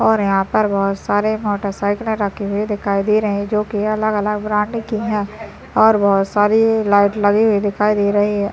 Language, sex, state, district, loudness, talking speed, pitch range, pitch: Hindi, male, Bihar, Madhepura, -17 LUFS, 205 wpm, 205-215 Hz, 210 Hz